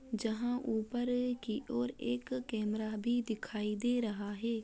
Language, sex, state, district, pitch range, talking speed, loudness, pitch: Hindi, female, Bihar, Muzaffarpur, 220-245 Hz, 140 wpm, -36 LUFS, 235 Hz